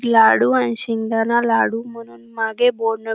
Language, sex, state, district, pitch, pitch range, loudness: Marathi, female, Maharashtra, Dhule, 225 Hz, 225-235 Hz, -18 LUFS